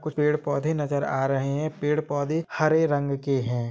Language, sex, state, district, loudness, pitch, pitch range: Hindi, male, Jharkhand, Sahebganj, -25 LUFS, 145 Hz, 140-155 Hz